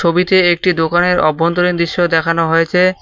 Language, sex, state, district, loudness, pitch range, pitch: Bengali, male, West Bengal, Cooch Behar, -13 LUFS, 165-180 Hz, 175 Hz